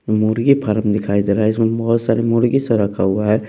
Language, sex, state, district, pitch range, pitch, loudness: Hindi, male, Bihar, West Champaran, 105-115 Hz, 110 Hz, -17 LUFS